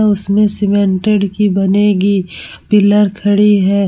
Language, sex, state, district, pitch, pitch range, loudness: Hindi, female, Bihar, Vaishali, 205 Hz, 195-205 Hz, -12 LUFS